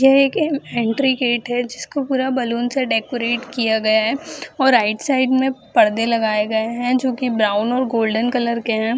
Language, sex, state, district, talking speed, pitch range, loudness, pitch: Hindi, female, Bihar, Jahanabad, 200 wpm, 225-260 Hz, -18 LUFS, 240 Hz